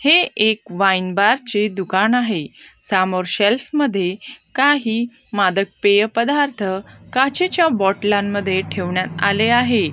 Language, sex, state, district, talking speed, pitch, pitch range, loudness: Marathi, female, Maharashtra, Gondia, 115 wpm, 210 Hz, 195-250 Hz, -18 LUFS